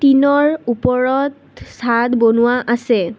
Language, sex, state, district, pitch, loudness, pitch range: Assamese, female, Assam, Kamrup Metropolitan, 245 Hz, -15 LUFS, 235-275 Hz